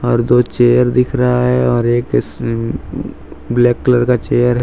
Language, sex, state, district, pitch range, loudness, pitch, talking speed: Hindi, male, Jharkhand, Deoghar, 120-125 Hz, -14 LUFS, 120 Hz, 155 wpm